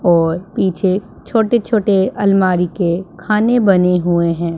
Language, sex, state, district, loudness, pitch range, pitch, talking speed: Hindi, female, Punjab, Pathankot, -15 LUFS, 175-210 Hz, 185 Hz, 130 wpm